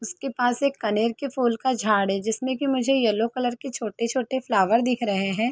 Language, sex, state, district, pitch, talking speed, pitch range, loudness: Hindi, female, Uttar Pradesh, Gorakhpur, 240 Hz, 230 wpm, 220-260 Hz, -24 LUFS